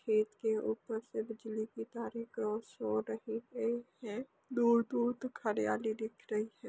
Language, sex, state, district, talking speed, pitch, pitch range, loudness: Hindi, female, Bihar, Saharsa, 160 wpm, 225 Hz, 215-235 Hz, -37 LUFS